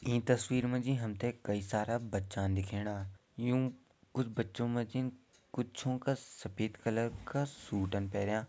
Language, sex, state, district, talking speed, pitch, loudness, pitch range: Garhwali, male, Uttarakhand, Tehri Garhwal, 165 wpm, 115 Hz, -36 LUFS, 100-125 Hz